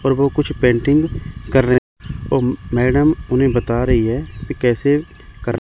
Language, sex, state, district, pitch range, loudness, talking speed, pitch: Hindi, male, Chandigarh, Chandigarh, 120-140 Hz, -17 LUFS, 160 wpm, 125 Hz